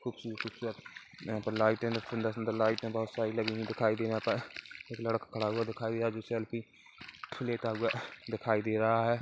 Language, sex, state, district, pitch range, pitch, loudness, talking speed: Hindi, female, Chhattisgarh, Kabirdham, 110-115 Hz, 115 Hz, -34 LUFS, 215 wpm